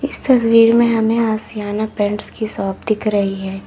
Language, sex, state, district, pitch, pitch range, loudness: Hindi, female, Uttar Pradesh, Lalitpur, 215 Hz, 205-230 Hz, -16 LUFS